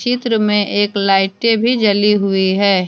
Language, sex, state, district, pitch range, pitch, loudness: Hindi, female, Jharkhand, Deoghar, 195-225 Hz, 205 Hz, -14 LUFS